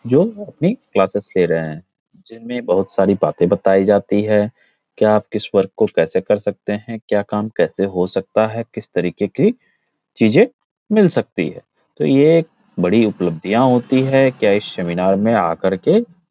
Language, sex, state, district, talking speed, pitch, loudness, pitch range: Hindi, male, Bihar, Araria, 185 wpm, 105 Hz, -17 LUFS, 95-135 Hz